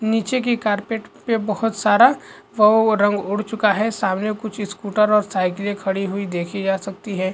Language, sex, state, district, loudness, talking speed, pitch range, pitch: Hindi, male, Chhattisgarh, Raigarh, -20 LUFS, 180 wpm, 195-220 Hz, 205 Hz